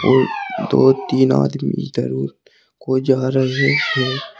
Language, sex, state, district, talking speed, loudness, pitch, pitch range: Hindi, male, Uttar Pradesh, Saharanpur, 135 wpm, -17 LUFS, 130 Hz, 130-135 Hz